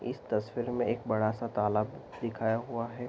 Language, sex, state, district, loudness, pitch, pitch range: Hindi, male, Bihar, Araria, -32 LUFS, 115 Hz, 110-120 Hz